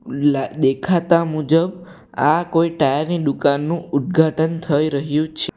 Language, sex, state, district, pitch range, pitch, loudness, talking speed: Gujarati, male, Gujarat, Valsad, 145-170 Hz, 160 Hz, -18 LUFS, 140 wpm